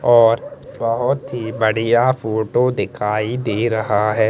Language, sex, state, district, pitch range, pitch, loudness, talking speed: Hindi, male, Chandigarh, Chandigarh, 110-120 Hz, 115 Hz, -18 LUFS, 125 wpm